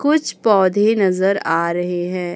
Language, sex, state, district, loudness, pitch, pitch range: Hindi, female, Chhattisgarh, Raipur, -17 LUFS, 190 Hz, 175-210 Hz